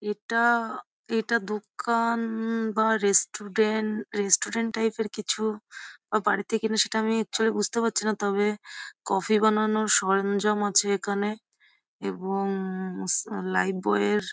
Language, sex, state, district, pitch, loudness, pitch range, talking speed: Bengali, female, West Bengal, Jhargram, 215 Hz, -26 LUFS, 200-225 Hz, 115 wpm